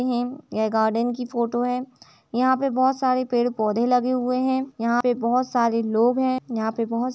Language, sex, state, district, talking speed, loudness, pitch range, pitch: Hindi, female, Uttar Pradesh, Etah, 220 wpm, -23 LUFS, 230-255 Hz, 245 Hz